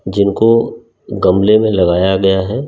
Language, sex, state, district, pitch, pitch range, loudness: Hindi, male, Delhi, New Delhi, 100 Hz, 95-110 Hz, -12 LUFS